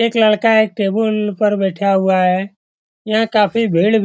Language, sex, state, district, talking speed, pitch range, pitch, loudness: Hindi, male, Bihar, Saran, 175 wpm, 195-220 Hz, 210 Hz, -15 LUFS